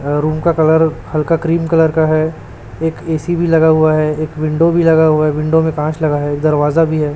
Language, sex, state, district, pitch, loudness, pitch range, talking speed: Hindi, male, Chhattisgarh, Raipur, 155 Hz, -14 LUFS, 155-160 Hz, 245 wpm